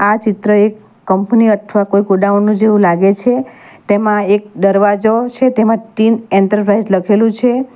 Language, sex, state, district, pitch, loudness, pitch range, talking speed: Gujarati, female, Gujarat, Valsad, 210 Hz, -12 LUFS, 205-225 Hz, 145 wpm